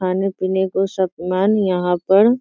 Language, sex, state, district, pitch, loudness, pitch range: Hindi, female, Bihar, Sitamarhi, 190 Hz, -18 LUFS, 185-195 Hz